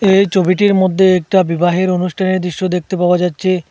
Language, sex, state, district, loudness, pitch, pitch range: Bengali, male, Assam, Hailakandi, -14 LUFS, 185 Hz, 180-190 Hz